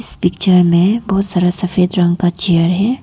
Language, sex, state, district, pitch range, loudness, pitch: Hindi, female, Arunachal Pradesh, Papum Pare, 175-195 Hz, -14 LUFS, 180 Hz